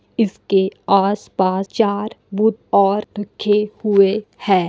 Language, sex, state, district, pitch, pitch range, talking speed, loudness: Hindi, female, Bihar, Kishanganj, 205 Hz, 195-210 Hz, 100 wpm, -18 LUFS